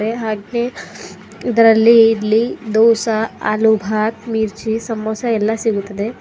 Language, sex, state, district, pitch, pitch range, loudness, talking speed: Kannada, female, Karnataka, Bidar, 220 Hz, 215-230 Hz, -16 LUFS, 85 wpm